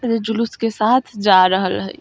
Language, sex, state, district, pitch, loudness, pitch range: Bajjika, female, Bihar, Vaishali, 220 Hz, -17 LUFS, 190-230 Hz